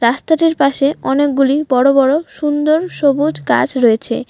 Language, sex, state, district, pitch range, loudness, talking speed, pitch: Bengali, female, West Bengal, Alipurduar, 265-300 Hz, -14 LUFS, 125 wpm, 280 Hz